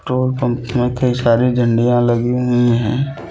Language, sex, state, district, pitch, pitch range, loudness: Hindi, male, Chhattisgarh, Balrampur, 120 Hz, 120-125 Hz, -16 LUFS